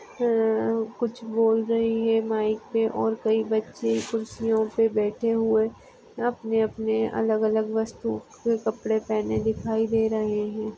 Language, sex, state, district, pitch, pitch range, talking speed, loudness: Hindi, female, Maharashtra, Aurangabad, 220 Hz, 220-225 Hz, 145 wpm, -25 LUFS